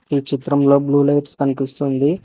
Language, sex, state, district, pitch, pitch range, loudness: Telugu, male, Telangana, Hyderabad, 140 Hz, 140-145 Hz, -17 LUFS